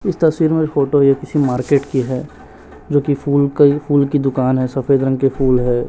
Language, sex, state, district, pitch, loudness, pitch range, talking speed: Hindi, male, Chhattisgarh, Raipur, 140 Hz, -16 LUFS, 130-145 Hz, 225 wpm